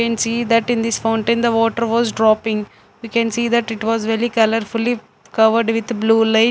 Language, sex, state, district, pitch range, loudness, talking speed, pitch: English, female, Punjab, Fazilka, 225-235 Hz, -17 LUFS, 195 wpm, 230 Hz